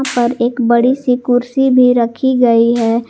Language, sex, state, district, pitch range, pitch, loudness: Hindi, female, Jharkhand, Garhwa, 235-255 Hz, 245 Hz, -13 LUFS